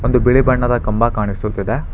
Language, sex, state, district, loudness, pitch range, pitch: Kannada, male, Karnataka, Bangalore, -16 LUFS, 105-125 Hz, 120 Hz